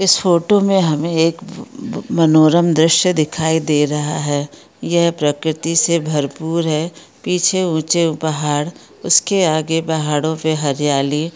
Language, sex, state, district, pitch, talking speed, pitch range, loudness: Hindi, female, Rajasthan, Churu, 160 Hz, 130 wpm, 155-170 Hz, -16 LUFS